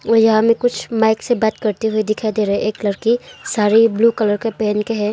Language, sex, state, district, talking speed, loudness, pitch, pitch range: Hindi, female, Arunachal Pradesh, Longding, 255 wpm, -17 LUFS, 220 Hz, 215-225 Hz